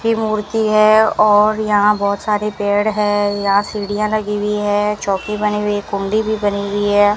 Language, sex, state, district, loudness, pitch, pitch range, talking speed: Hindi, female, Rajasthan, Bikaner, -16 LUFS, 210 Hz, 205-215 Hz, 190 wpm